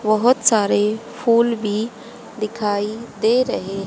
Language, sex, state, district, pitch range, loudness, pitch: Hindi, female, Haryana, Jhajjar, 210-235 Hz, -19 LUFS, 220 Hz